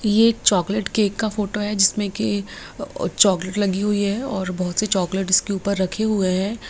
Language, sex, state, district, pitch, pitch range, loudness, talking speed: Hindi, female, Bihar, Jamui, 200 Hz, 190-210 Hz, -20 LUFS, 195 wpm